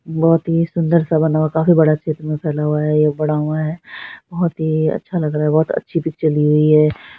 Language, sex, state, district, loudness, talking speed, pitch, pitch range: Hindi, female, Bihar, Saharsa, -17 LUFS, 225 wpm, 155 Hz, 150-165 Hz